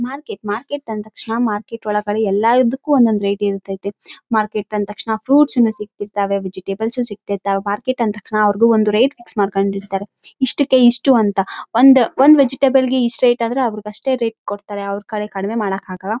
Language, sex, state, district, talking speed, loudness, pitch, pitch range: Kannada, female, Karnataka, Raichur, 45 wpm, -17 LUFS, 215 Hz, 205-245 Hz